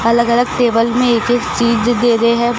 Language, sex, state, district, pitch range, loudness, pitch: Hindi, female, Maharashtra, Gondia, 235-245 Hz, -14 LUFS, 235 Hz